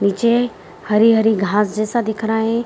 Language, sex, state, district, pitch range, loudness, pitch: Hindi, female, Bihar, Kishanganj, 210-230 Hz, -17 LUFS, 220 Hz